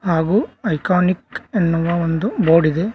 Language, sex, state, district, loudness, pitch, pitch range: Kannada, male, Karnataka, Koppal, -18 LUFS, 175 Hz, 165-200 Hz